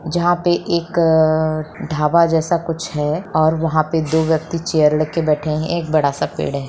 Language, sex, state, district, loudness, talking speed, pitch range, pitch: Hindi, female, Bihar, Begusarai, -17 LUFS, 190 wpm, 155-170 Hz, 160 Hz